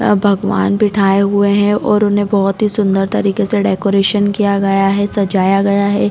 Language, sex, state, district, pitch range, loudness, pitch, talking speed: Hindi, female, Chhattisgarh, Raigarh, 195-205 Hz, -13 LUFS, 200 Hz, 185 wpm